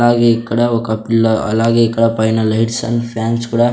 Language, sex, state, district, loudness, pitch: Telugu, male, Andhra Pradesh, Sri Satya Sai, -15 LUFS, 115 Hz